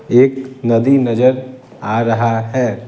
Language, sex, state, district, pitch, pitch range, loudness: Hindi, male, Bihar, Patna, 125 Hz, 115-130 Hz, -14 LUFS